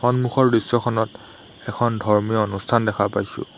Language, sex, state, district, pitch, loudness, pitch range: Assamese, male, Assam, Hailakandi, 120 Hz, -21 LUFS, 110-125 Hz